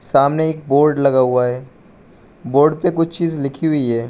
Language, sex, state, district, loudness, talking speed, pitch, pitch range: Hindi, male, Arunachal Pradesh, Lower Dibang Valley, -16 LUFS, 190 wpm, 145 Hz, 130-160 Hz